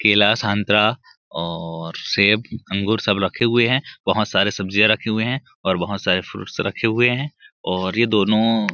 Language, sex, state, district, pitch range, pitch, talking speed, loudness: Hindi, male, Chhattisgarh, Bilaspur, 95-115 Hz, 105 Hz, 170 wpm, -19 LUFS